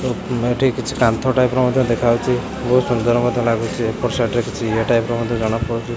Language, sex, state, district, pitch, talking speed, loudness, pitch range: Odia, male, Odisha, Khordha, 120 Hz, 190 wpm, -18 LUFS, 115-125 Hz